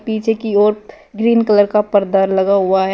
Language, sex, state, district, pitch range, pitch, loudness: Hindi, female, Uttar Pradesh, Shamli, 195-220 Hz, 210 Hz, -14 LUFS